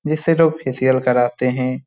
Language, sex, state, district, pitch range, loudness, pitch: Hindi, male, Bihar, Lakhisarai, 130-155 Hz, -17 LUFS, 130 Hz